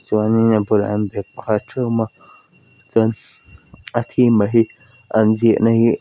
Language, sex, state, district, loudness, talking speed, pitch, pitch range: Mizo, female, Mizoram, Aizawl, -18 LUFS, 180 wpm, 110 Hz, 105-115 Hz